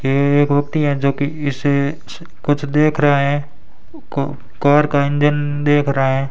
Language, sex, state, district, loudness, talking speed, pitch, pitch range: Hindi, male, Rajasthan, Bikaner, -17 LUFS, 150 wpm, 145 Hz, 140-145 Hz